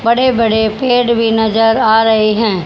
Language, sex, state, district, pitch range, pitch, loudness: Hindi, female, Haryana, Jhajjar, 220-235 Hz, 225 Hz, -12 LUFS